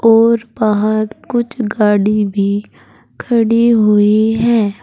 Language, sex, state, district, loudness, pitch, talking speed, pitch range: Hindi, female, Uttar Pradesh, Saharanpur, -13 LUFS, 215 Hz, 100 wpm, 205-230 Hz